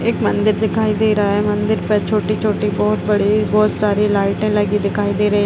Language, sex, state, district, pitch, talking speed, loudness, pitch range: Hindi, female, Uttar Pradesh, Etah, 210 Hz, 210 wpm, -16 LUFS, 205-215 Hz